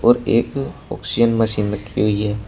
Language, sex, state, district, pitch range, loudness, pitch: Hindi, male, Uttar Pradesh, Shamli, 105-120 Hz, -19 LUFS, 110 Hz